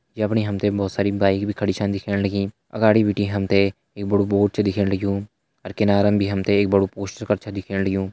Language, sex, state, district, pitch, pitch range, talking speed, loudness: Hindi, male, Uttarakhand, Tehri Garhwal, 100 Hz, 100-105 Hz, 235 wpm, -21 LUFS